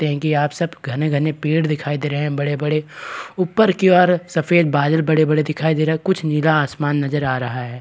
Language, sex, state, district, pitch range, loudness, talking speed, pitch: Hindi, male, Bihar, Kishanganj, 145-160 Hz, -18 LUFS, 215 wpm, 155 Hz